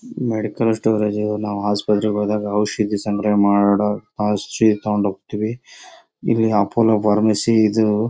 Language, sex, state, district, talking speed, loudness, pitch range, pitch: Kannada, male, Karnataka, Bellary, 110 wpm, -19 LUFS, 105-110 Hz, 105 Hz